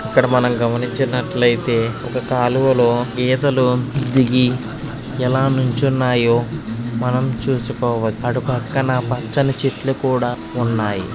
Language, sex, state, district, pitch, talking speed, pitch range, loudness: Telugu, male, Andhra Pradesh, Srikakulam, 125 Hz, 90 wpm, 120-130 Hz, -18 LUFS